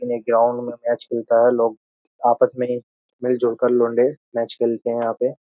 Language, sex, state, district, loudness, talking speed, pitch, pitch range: Hindi, male, Uttar Pradesh, Jyotiba Phule Nagar, -20 LUFS, 190 wpm, 120 Hz, 115-125 Hz